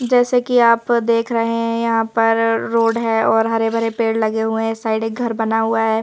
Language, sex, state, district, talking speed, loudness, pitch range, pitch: Hindi, female, Madhya Pradesh, Bhopal, 230 wpm, -17 LUFS, 225-230 Hz, 230 Hz